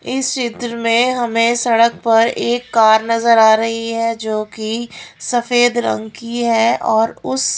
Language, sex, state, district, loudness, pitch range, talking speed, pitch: Hindi, female, Haryana, Rohtak, -15 LUFS, 225-240 Hz, 150 wpm, 230 Hz